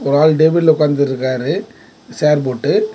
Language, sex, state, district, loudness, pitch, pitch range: Tamil, male, Tamil Nadu, Kanyakumari, -15 LUFS, 150 Hz, 140-160 Hz